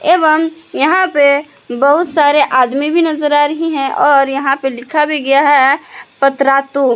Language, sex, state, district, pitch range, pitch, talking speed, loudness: Hindi, female, Jharkhand, Palamu, 275-310 Hz, 285 Hz, 165 wpm, -12 LUFS